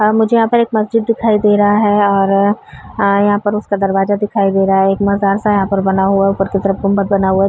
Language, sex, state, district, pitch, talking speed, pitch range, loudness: Hindi, female, Uttar Pradesh, Varanasi, 200 Hz, 255 wpm, 195-210 Hz, -13 LUFS